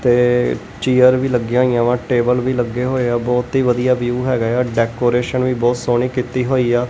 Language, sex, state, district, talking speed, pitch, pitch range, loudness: Punjabi, male, Punjab, Kapurthala, 215 wpm, 125 Hz, 120-125 Hz, -17 LUFS